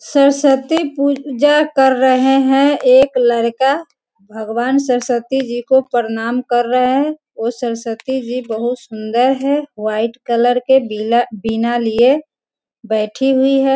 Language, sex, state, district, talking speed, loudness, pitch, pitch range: Hindi, female, Bihar, Sitamarhi, 125 wpm, -15 LUFS, 255 Hz, 235-270 Hz